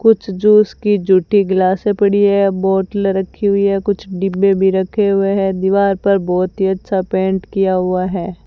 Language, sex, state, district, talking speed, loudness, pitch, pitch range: Hindi, female, Rajasthan, Bikaner, 185 wpm, -15 LUFS, 195 Hz, 190-200 Hz